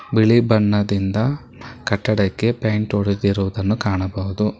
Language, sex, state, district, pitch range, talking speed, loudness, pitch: Kannada, male, Karnataka, Bangalore, 100-115 Hz, 80 wpm, -19 LUFS, 105 Hz